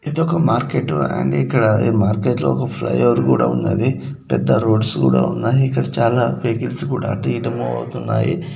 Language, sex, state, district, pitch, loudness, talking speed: Telugu, male, Telangana, Nalgonda, 110 Hz, -18 LUFS, 175 wpm